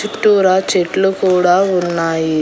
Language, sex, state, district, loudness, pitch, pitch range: Telugu, female, Andhra Pradesh, Annamaya, -14 LUFS, 185 Hz, 175-195 Hz